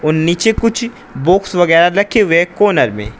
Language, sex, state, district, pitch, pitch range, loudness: Hindi, male, Uttar Pradesh, Saharanpur, 180 Hz, 165-215 Hz, -13 LUFS